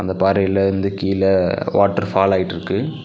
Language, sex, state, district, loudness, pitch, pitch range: Tamil, male, Tamil Nadu, Nilgiris, -18 LUFS, 95 Hz, 95-100 Hz